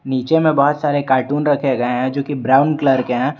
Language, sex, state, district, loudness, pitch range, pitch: Hindi, male, Jharkhand, Garhwa, -16 LUFS, 130-145 Hz, 140 Hz